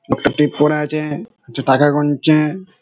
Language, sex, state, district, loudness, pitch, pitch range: Bengali, male, West Bengal, Malda, -16 LUFS, 150 Hz, 145-150 Hz